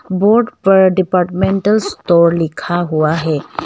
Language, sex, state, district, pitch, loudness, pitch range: Hindi, female, Arunachal Pradesh, Longding, 185 Hz, -14 LUFS, 170-195 Hz